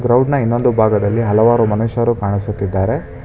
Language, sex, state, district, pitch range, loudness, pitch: Kannada, male, Karnataka, Bangalore, 105-120 Hz, -15 LUFS, 115 Hz